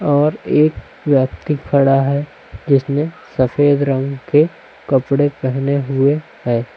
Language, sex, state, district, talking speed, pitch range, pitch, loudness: Hindi, male, Chhattisgarh, Raipur, 105 wpm, 135-145 Hz, 140 Hz, -16 LUFS